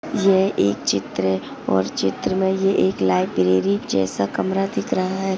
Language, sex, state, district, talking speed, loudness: Hindi, female, Maharashtra, Dhule, 145 wpm, -20 LUFS